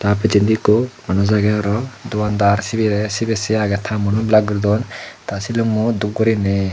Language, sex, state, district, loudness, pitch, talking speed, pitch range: Chakma, male, Tripura, Dhalai, -17 LUFS, 105 Hz, 180 wpm, 105-110 Hz